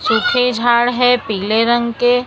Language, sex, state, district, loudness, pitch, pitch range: Hindi, male, Maharashtra, Mumbai Suburban, -14 LUFS, 240 Hz, 235-245 Hz